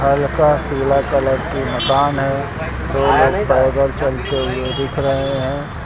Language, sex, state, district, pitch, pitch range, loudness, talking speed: Hindi, male, Uttar Pradesh, Lucknow, 135 Hz, 130-140 Hz, -17 LUFS, 145 wpm